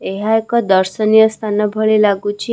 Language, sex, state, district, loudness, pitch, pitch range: Odia, female, Odisha, Khordha, -14 LUFS, 215 Hz, 205-220 Hz